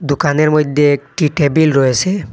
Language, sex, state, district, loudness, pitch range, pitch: Bengali, male, Assam, Hailakandi, -13 LUFS, 145-155 Hz, 150 Hz